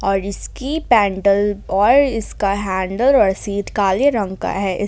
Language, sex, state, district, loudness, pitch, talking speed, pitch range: Hindi, female, Jharkhand, Ranchi, -17 LUFS, 200 Hz, 145 wpm, 195-220 Hz